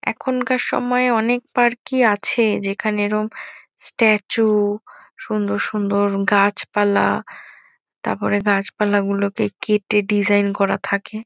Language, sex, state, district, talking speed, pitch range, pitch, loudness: Bengali, female, West Bengal, Kolkata, 105 wpm, 205-240 Hz, 210 Hz, -19 LUFS